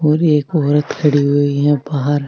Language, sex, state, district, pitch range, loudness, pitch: Marwari, female, Rajasthan, Nagaur, 145-150 Hz, -15 LUFS, 145 Hz